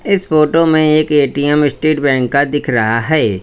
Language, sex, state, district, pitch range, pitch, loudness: Hindi, male, Uttar Pradesh, Lalitpur, 135-155 Hz, 145 Hz, -13 LUFS